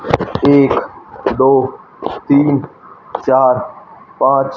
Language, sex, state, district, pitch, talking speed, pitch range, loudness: Hindi, male, Haryana, Rohtak, 135 Hz, 65 wpm, 130-140 Hz, -14 LUFS